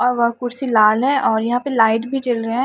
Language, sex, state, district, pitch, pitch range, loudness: Hindi, female, Haryana, Charkhi Dadri, 245 Hz, 225-255 Hz, -17 LUFS